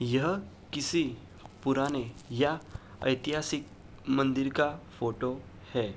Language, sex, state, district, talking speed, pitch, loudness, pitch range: Hindi, male, Uttar Pradesh, Hamirpur, 90 wpm, 130 Hz, -31 LUFS, 115-145 Hz